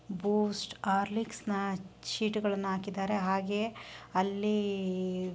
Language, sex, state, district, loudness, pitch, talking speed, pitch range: Kannada, female, Karnataka, Shimoga, -33 LUFS, 200 Hz, 65 wpm, 190-210 Hz